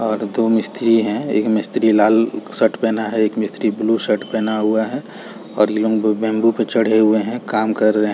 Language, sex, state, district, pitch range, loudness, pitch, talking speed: Hindi, male, Chhattisgarh, Raigarh, 110-115 Hz, -17 LUFS, 110 Hz, 215 wpm